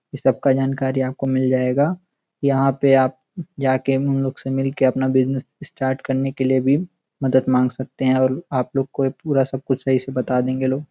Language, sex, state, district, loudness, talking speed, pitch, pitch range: Hindi, male, Uttar Pradesh, Gorakhpur, -20 LUFS, 235 wpm, 135 Hz, 130-135 Hz